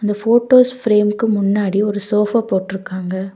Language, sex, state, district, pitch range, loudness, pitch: Tamil, female, Tamil Nadu, Nilgiris, 195-225 Hz, -16 LUFS, 210 Hz